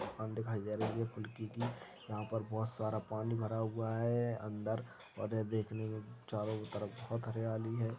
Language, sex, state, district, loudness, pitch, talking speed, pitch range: Hindi, male, Chhattisgarh, Balrampur, -40 LUFS, 110 Hz, 190 wpm, 110-115 Hz